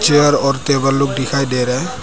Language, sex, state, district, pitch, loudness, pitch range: Hindi, male, Arunachal Pradesh, Papum Pare, 140 Hz, -15 LUFS, 135-145 Hz